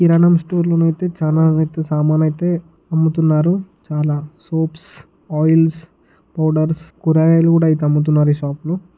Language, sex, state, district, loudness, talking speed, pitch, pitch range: Telugu, male, Telangana, Karimnagar, -16 LUFS, 120 wpm, 160 Hz, 155-165 Hz